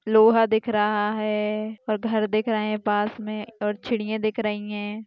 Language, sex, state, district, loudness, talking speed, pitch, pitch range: Hindi, female, Maharashtra, Aurangabad, -24 LUFS, 190 wpm, 215 Hz, 210-220 Hz